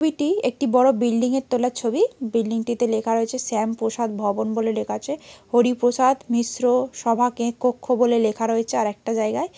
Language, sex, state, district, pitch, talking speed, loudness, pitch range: Bengali, female, West Bengal, Malda, 240 Hz, 170 wpm, -22 LUFS, 225-255 Hz